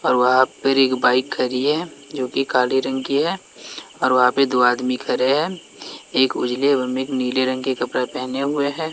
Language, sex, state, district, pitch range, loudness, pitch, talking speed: Hindi, male, Bihar, West Champaran, 125-135 Hz, -19 LUFS, 130 Hz, 200 wpm